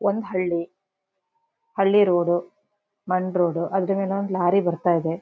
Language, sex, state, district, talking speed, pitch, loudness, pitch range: Kannada, female, Karnataka, Shimoga, 115 wpm, 190 Hz, -22 LUFS, 175-200 Hz